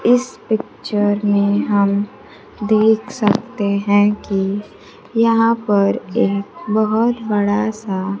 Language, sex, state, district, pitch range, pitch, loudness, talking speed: Hindi, female, Bihar, Kaimur, 205-220 Hz, 210 Hz, -17 LUFS, 100 wpm